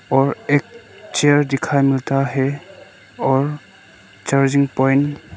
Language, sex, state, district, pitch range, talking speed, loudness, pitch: Hindi, male, Arunachal Pradesh, Lower Dibang Valley, 135-145 Hz, 110 wpm, -18 LUFS, 140 Hz